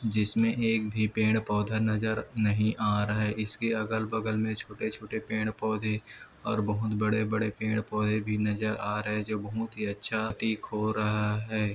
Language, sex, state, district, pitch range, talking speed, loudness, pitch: Hindi, male, Chhattisgarh, Kabirdham, 105-110 Hz, 185 wpm, -30 LUFS, 110 Hz